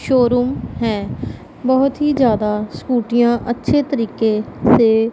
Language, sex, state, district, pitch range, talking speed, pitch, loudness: Hindi, female, Punjab, Pathankot, 220-260 Hz, 105 wpm, 240 Hz, -17 LUFS